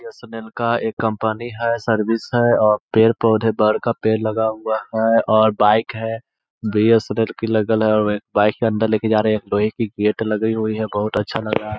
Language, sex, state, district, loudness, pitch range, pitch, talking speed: Hindi, male, Bihar, Gaya, -18 LUFS, 110-115 Hz, 110 Hz, 175 wpm